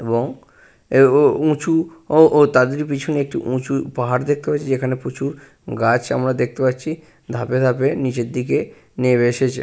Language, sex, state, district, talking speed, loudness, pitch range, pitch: Bengali, male, West Bengal, Purulia, 150 wpm, -18 LUFS, 125-145 Hz, 130 Hz